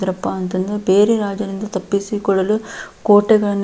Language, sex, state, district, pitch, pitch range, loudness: Kannada, female, Karnataka, Belgaum, 200 Hz, 190-210 Hz, -17 LUFS